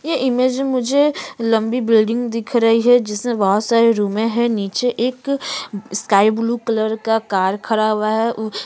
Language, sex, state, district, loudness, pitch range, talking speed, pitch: Hindi, female, Uttarakhand, Tehri Garhwal, -17 LUFS, 215-245 Hz, 165 wpm, 230 Hz